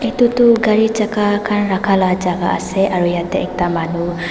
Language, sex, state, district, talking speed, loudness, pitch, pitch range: Nagamese, female, Nagaland, Dimapur, 180 wpm, -16 LUFS, 195 Hz, 175-215 Hz